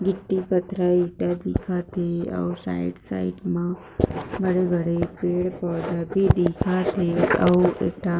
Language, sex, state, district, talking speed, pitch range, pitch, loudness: Chhattisgarhi, female, Chhattisgarh, Jashpur, 140 wpm, 170-185 Hz, 175 Hz, -24 LUFS